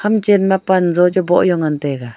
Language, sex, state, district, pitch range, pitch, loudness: Wancho, female, Arunachal Pradesh, Longding, 155-190 Hz, 180 Hz, -15 LUFS